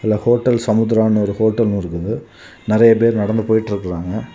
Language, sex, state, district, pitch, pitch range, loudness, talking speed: Tamil, male, Tamil Nadu, Kanyakumari, 110 Hz, 105-115 Hz, -16 LUFS, 150 wpm